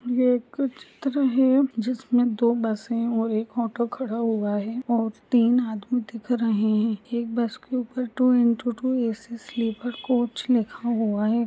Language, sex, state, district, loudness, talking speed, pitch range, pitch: Hindi, female, Maharashtra, Solapur, -24 LUFS, 165 wpm, 225-250 Hz, 235 Hz